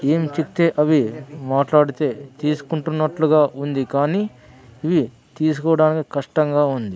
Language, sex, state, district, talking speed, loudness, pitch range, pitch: Telugu, male, Andhra Pradesh, Sri Satya Sai, 95 wpm, -20 LUFS, 140-155 Hz, 150 Hz